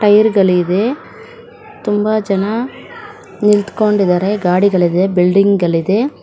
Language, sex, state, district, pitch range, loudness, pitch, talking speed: Kannada, female, Karnataka, Bangalore, 185-235 Hz, -14 LUFS, 205 Hz, 85 wpm